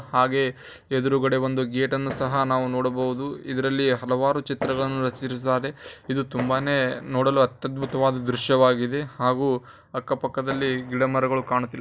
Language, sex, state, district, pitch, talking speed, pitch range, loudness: Kannada, male, Karnataka, Bijapur, 130 Hz, 95 wpm, 130-135 Hz, -24 LUFS